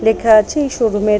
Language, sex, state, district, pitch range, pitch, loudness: Bengali, female, West Bengal, Paschim Medinipur, 210-240 Hz, 220 Hz, -14 LUFS